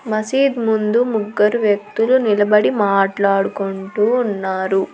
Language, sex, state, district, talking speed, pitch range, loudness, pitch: Telugu, female, Andhra Pradesh, Annamaya, 85 wpm, 200-225 Hz, -17 LUFS, 210 Hz